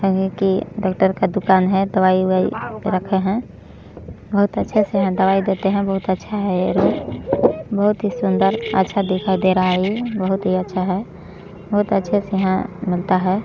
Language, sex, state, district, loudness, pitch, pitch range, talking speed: Hindi, male, Chhattisgarh, Balrampur, -19 LUFS, 190 Hz, 185-200 Hz, 145 wpm